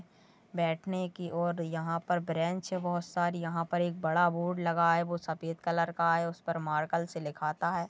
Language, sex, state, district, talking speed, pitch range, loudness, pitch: Hindi, female, Goa, North and South Goa, 200 wpm, 165-175 Hz, -32 LUFS, 170 Hz